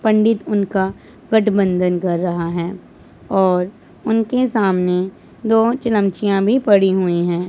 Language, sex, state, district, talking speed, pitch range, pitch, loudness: Hindi, male, Punjab, Pathankot, 130 wpm, 180-220 Hz, 195 Hz, -17 LUFS